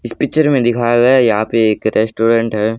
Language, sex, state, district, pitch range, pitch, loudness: Hindi, male, Haryana, Rohtak, 110-120 Hz, 115 Hz, -13 LUFS